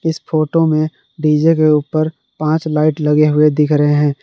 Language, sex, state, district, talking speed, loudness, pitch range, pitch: Hindi, male, Jharkhand, Palamu, 185 wpm, -14 LUFS, 150-155 Hz, 155 Hz